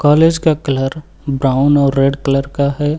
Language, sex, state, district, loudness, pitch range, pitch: Hindi, male, Uttar Pradesh, Lucknow, -14 LUFS, 135-150 Hz, 140 Hz